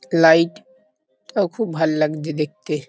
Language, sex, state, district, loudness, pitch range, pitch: Bengali, male, West Bengal, Kolkata, -20 LUFS, 135-165 Hz, 155 Hz